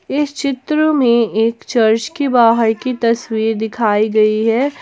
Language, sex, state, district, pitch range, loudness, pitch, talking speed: Hindi, female, Jharkhand, Palamu, 220-275 Hz, -15 LUFS, 230 Hz, 150 wpm